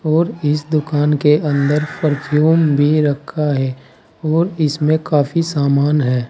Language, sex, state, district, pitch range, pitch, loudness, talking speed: Hindi, male, Uttar Pradesh, Saharanpur, 145-155 Hz, 150 Hz, -16 LUFS, 135 wpm